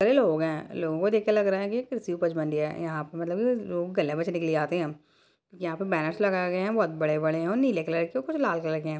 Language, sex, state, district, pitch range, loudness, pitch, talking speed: Hindi, female, Uttarakhand, Uttarkashi, 160-200 Hz, -28 LUFS, 170 Hz, 265 wpm